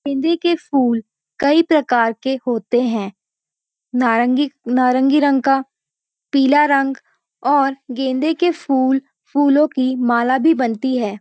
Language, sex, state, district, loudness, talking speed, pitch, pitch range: Hindi, female, Uttarakhand, Uttarkashi, -17 LUFS, 130 wpm, 265 Hz, 245-285 Hz